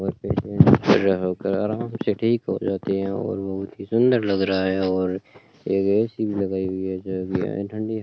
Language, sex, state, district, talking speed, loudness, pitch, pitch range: Hindi, male, Rajasthan, Bikaner, 125 wpm, -22 LUFS, 95 Hz, 95-110 Hz